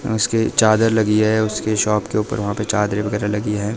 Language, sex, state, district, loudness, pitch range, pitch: Hindi, male, Himachal Pradesh, Shimla, -18 LUFS, 105-110 Hz, 105 Hz